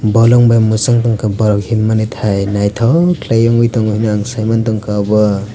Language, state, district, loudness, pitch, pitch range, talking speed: Kokborok, Tripura, West Tripura, -13 LUFS, 110 Hz, 105-115 Hz, 150 wpm